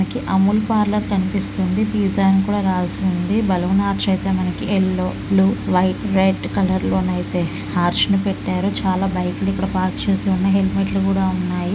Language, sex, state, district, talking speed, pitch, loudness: Telugu, female, Andhra Pradesh, Visakhapatnam, 170 wpm, 185 Hz, -19 LUFS